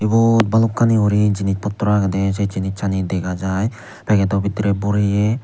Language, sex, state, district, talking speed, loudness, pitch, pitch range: Chakma, male, Tripura, Unakoti, 145 wpm, -18 LUFS, 100 Hz, 95-105 Hz